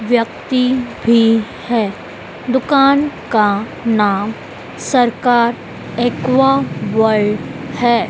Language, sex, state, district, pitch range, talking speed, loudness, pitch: Hindi, female, Madhya Pradesh, Dhar, 220-255 Hz, 75 wpm, -15 LUFS, 235 Hz